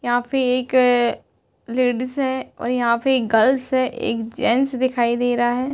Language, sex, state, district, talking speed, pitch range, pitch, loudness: Hindi, female, Bihar, Darbhanga, 190 wpm, 240-260 Hz, 250 Hz, -20 LUFS